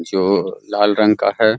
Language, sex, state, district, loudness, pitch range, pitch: Hindi, male, Bihar, Araria, -16 LUFS, 100-105 Hz, 105 Hz